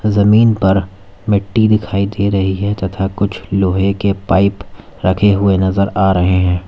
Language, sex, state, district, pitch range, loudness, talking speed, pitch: Hindi, male, Uttar Pradesh, Lalitpur, 95-100 Hz, -14 LUFS, 160 wpm, 100 Hz